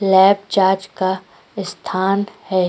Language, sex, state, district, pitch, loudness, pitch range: Hindi, female, Goa, North and South Goa, 190 Hz, -18 LUFS, 190-200 Hz